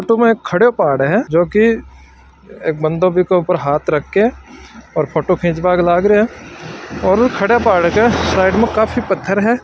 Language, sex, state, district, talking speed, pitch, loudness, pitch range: Marwari, male, Rajasthan, Nagaur, 180 wpm, 190 Hz, -14 LUFS, 170-225 Hz